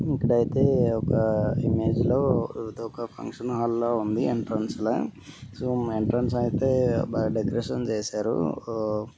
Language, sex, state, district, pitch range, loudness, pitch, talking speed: Telugu, male, Andhra Pradesh, Guntur, 110-125 Hz, -26 LUFS, 115 Hz, 120 wpm